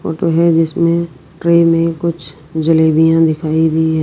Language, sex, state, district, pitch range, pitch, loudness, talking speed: Hindi, female, Rajasthan, Jaipur, 160-170 Hz, 165 Hz, -13 LUFS, 150 wpm